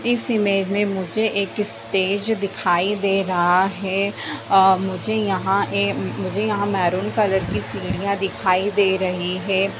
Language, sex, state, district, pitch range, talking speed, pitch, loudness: Hindi, female, Bihar, Begusarai, 185-205 Hz, 145 wpm, 195 Hz, -20 LUFS